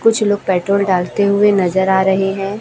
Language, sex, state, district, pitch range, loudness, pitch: Hindi, male, Chhattisgarh, Raipur, 190-205 Hz, -15 LUFS, 195 Hz